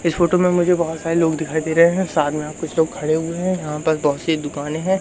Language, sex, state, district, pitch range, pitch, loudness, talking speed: Hindi, male, Madhya Pradesh, Umaria, 155-175 Hz, 160 Hz, -19 LUFS, 300 wpm